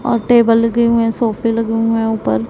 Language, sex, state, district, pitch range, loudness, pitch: Hindi, female, Punjab, Pathankot, 225-230 Hz, -14 LUFS, 230 Hz